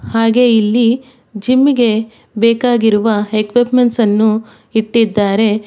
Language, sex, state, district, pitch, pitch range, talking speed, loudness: Kannada, female, Karnataka, Bangalore, 225 Hz, 215-245 Hz, 85 wpm, -13 LUFS